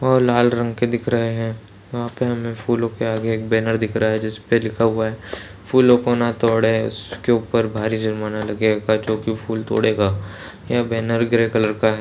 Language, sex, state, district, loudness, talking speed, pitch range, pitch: Hindi, male, Chhattisgarh, Rajnandgaon, -20 LUFS, 205 wpm, 110-120 Hz, 110 Hz